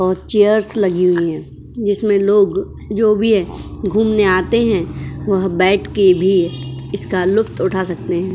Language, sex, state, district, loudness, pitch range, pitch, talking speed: Hindi, female, Uttar Pradesh, Jyotiba Phule Nagar, -16 LUFS, 180-210 Hz, 190 Hz, 145 wpm